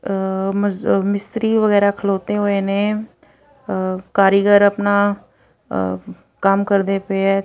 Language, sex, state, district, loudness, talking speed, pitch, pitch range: Punjabi, female, Punjab, Fazilka, -18 LUFS, 90 wpm, 200 Hz, 195-205 Hz